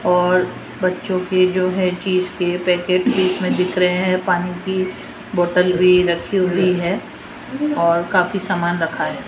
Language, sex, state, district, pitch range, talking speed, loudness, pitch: Hindi, female, Rajasthan, Jaipur, 180-185 Hz, 160 wpm, -18 LUFS, 180 Hz